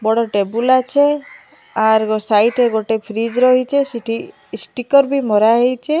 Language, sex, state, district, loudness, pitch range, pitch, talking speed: Odia, female, Odisha, Malkangiri, -16 LUFS, 220-255 Hz, 235 Hz, 150 wpm